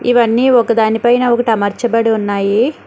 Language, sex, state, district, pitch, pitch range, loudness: Telugu, female, Telangana, Hyderabad, 230 Hz, 220-240 Hz, -13 LUFS